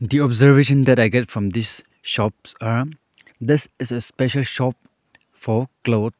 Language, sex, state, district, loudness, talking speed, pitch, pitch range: English, male, Arunachal Pradesh, Lower Dibang Valley, -19 LUFS, 155 wpm, 125 Hz, 115-135 Hz